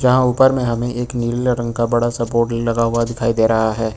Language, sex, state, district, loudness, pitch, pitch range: Hindi, male, Uttar Pradesh, Lucknow, -17 LUFS, 120 Hz, 115-120 Hz